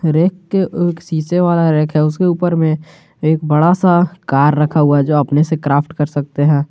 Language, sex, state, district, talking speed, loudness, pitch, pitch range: Hindi, male, Jharkhand, Garhwa, 195 wpm, -14 LUFS, 155 Hz, 150-175 Hz